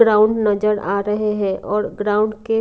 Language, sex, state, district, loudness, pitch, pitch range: Hindi, female, Punjab, Kapurthala, -19 LUFS, 210 Hz, 205-215 Hz